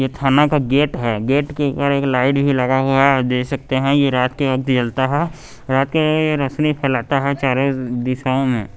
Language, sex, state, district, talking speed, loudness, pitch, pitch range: Hindi, male, Bihar, West Champaran, 220 wpm, -17 LUFS, 135 Hz, 130-140 Hz